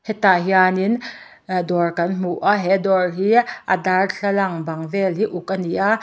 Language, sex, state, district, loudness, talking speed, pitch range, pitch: Mizo, male, Mizoram, Aizawl, -19 LUFS, 180 wpm, 180-200 Hz, 190 Hz